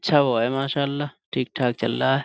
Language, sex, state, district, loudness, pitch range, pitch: Urdu, male, Uttar Pradesh, Budaun, -23 LUFS, 125-140 Hz, 135 Hz